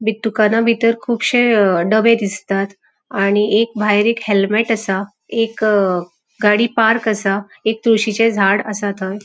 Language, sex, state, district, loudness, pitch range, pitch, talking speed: Konkani, female, Goa, North and South Goa, -16 LUFS, 200-225 Hz, 215 Hz, 135 wpm